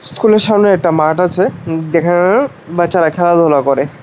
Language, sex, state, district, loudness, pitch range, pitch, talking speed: Bengali, male, Tripura, West Tripura, -12 LUFS, 160-185 Hz, 175 Hz, 135 wpm